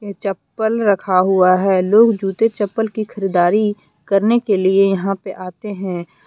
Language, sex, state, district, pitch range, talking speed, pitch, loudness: Hindi, female, Jharkhand, Deoghar, 190-215 Hz, 165 wpm, 195 Hz, -16 LUFS